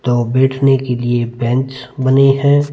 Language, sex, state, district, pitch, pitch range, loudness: Hindi, male, Punjab, Fazilka, 130 Hz, 120-135 Hz, -14 LUFS